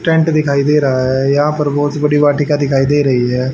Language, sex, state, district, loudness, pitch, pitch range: Hindi, male, Haryana, Charkhi Dadri, -13 LUFS, 145 Hz, 135-150 Hz